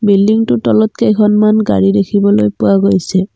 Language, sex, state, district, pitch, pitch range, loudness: Assamese, female, Assam, Kamrup Metropolitan, 200 Hz, 190-215 Hz, -11 LUFS